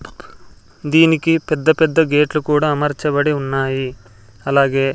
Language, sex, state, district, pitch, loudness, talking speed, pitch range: Telugu, male, Andhra Pradesh, Sri Satya Sai, 150 Hz, -16 LUFS, 120 wpm, 135-155 Hz